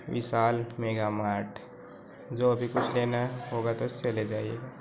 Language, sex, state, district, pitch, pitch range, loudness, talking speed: Hindi, male, Chhattisgarh, Korba, 120 Hz, 110-120 Hz, -30 LUFS, 160 wpm